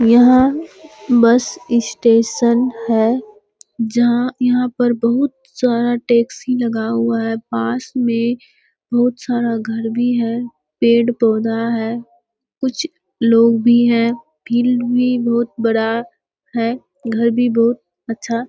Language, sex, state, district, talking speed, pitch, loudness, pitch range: Hindi, female, Bihar, Kishanganj, 115 wpm, 235 Hz, -16 LUFS, 230-250 Hz